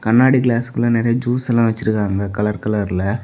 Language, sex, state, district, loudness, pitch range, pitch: Tamil, male, Tamil Nadu, Kanyakumari, -17 LUFS, 105-120 Hz, 115 Hz